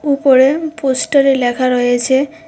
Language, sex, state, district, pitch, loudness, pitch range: Bengali, female, Tripura, West Tripura, 270 Hz, -13 LUFS, 255-285 Hz